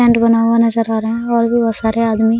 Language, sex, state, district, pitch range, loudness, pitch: Hindi, female, Bihar, Araria, 225-230 Hz, -14 LUFS, 230 Hz